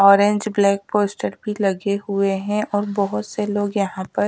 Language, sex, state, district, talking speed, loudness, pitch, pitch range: Hindi, female, Chhattisgarh, Raipur, 180 wpm, -21 LUFS, 200 Hz, 195-205 Hz